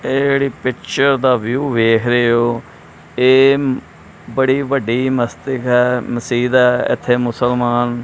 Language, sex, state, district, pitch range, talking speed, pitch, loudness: Punjabi, male, Punjab, Kapurthala, 120-130 Hz, 125 wpm, 125 Hz, -15 LUFS